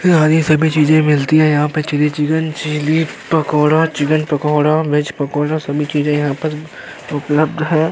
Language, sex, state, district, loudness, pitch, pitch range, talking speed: Hindi, male, Uttar Pradesh, Hamirpur, -15 LUFS, 150 Hz, 150-155 Hz, 165 wpm